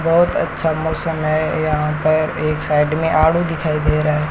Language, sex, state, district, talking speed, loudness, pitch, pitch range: Hindi, male, Rajasthan, Bikaner, 195 wpm, -17 LUFS, 155 Hz, 155-160 Hz